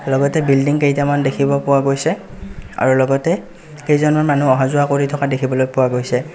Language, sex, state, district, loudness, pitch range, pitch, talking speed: Assamese, male, Assam, Kamrup Metropolitan, -16 LUFS, 130-145 Hz, 140 Hz, 160 wpm